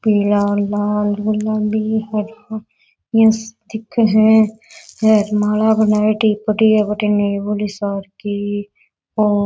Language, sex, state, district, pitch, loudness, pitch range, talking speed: Rajasthani, female, Rajasthan, Nagaur, 210 Hz, -16 LUFS, 205-220 Hz, 110 wpm